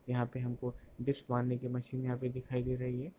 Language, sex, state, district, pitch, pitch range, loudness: Hindi, female, Bihar, Darbhanga, 125 Hz, 125-130 Hz, -37 LUFS